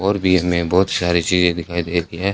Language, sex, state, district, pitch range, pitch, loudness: Hindi, male, Rajasthan, Bikaner, 85-95 Hz, 90 Hz, -18 LUFS